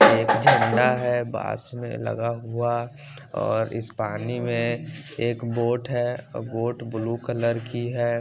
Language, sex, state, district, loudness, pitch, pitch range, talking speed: Hindi, male, Bihar, West Champaran, -25 LUFS, 120 Hz, 115-120 Hz, 145 wpm